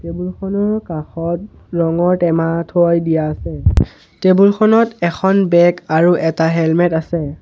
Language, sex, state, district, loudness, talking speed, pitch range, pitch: Assamese, male, Assam, Sonitpur, -15 LUFS, 130 wpm, 165-185 Hz, 170 Hz